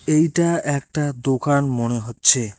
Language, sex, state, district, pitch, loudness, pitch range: Bengali, male, West Bengal, Cooch Behar, 140 Hz, -20 LUFS, 120-150 Hz